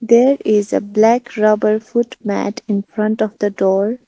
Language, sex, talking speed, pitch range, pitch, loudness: English, female, 175 wpm, 210-235 Hz, 215 Hz, -16 LUFS